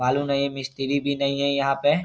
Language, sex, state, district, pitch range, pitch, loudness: Hindi, male, Bihar, Saharsa, 135-140 Hz, 140 Hz, -24 LUFS